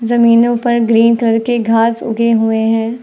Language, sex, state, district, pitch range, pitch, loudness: Hindi, female, Uttar Pradesh, Lucknow, 225-235 Hz, 230 Hz, -12 LUFS